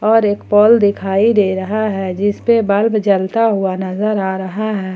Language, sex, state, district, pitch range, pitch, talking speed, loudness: Hindi, female, Jharkhand, Ranchi, 190-215 Hz, 205 Hz, 180 wpm, -15 LUFS